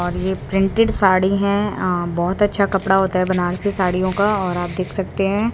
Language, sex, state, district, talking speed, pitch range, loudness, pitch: Hindi, female, Haryana, Rohtak, 205 wpm, 185-200 Hz, -19 LUFS, 190 Hz